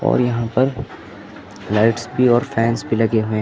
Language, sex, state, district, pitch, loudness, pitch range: Hindi, male, Uttar Pradesh, Lucknow, 115 Hz, -18 LUFS, 110-125 Hz